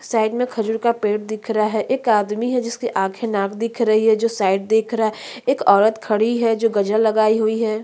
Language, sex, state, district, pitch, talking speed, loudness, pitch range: Hindi, female, Chhattisgarh, Korba, 220 Hz, 235 wpm, -19 LUFS, 215-230 Hz